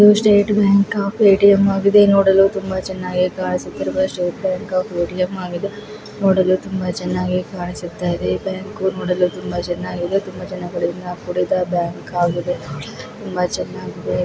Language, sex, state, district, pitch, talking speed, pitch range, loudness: Kannada, female, Karnataka, Bellary, 185 Hz, 140 wpm, 180-195 Hz, -18 LUFS